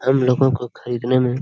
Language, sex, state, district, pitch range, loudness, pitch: Hindi, male, Jharkhand, Sahebganj, 125-130 Hz, -19 LUFS, 125 Hz